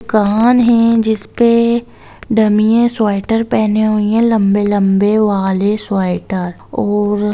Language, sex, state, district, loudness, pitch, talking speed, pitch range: Hindi, female, Bihar, Darbhanga, -13 LUFS, 215 Hz, 105 wpm, 205-225 Hz